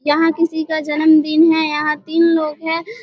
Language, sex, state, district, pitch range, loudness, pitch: Hindi, female, Bihar, Vaishali, 305-330 Hz, -16 LUFS, 315 Hz